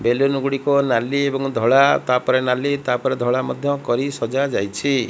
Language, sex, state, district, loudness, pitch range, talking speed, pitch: Odia, female, Odisha, Malkangiri, -19 LUFS, 125-140 Hz, 175 wpm, 135 Hz